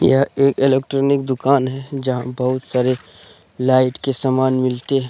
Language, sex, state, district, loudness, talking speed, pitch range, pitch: Hindi, male, Jharkhand, Deoghar, -18 LUFS, 155 wpm, 125-135 Hz, 130 Hz